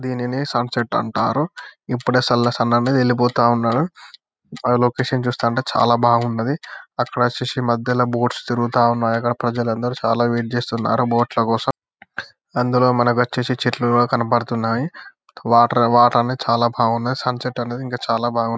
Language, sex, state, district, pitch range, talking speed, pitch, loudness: Telugu, male, Telangana, Karimnagar, 120-125 Hz, 140 wpm, 120 Hz, -19 LUFS